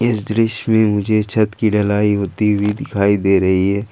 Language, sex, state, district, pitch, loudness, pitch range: Hindi, male, Jharkhand, Ranchi, 105 Hz, -16 LUFS, 100-110 Hz